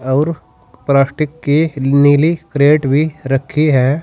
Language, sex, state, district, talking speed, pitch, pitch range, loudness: Hindi, male, Uttar Pradesh, Saharanpur, 120 wpm, 145 Hz, 135-155 Hz, -14 LUFS